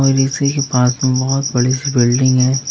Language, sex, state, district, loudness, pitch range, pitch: Hindi, male, Uttar Pradesh, Lucknow, -15 LUFS, 125-135 Hz, 130 Hz